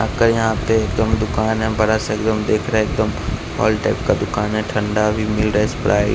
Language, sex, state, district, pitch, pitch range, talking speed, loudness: Hindi, male, Bihar, West Champaran, 110 Hz, 105-110 Hz, 245 wpm, -18 LUFS